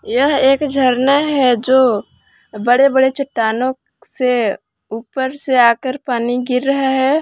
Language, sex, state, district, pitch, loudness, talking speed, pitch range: Hindi, female, Jharkhand, Palamu, 260 Hz, -15 LUFS, 135 wpm, 245-275 Hz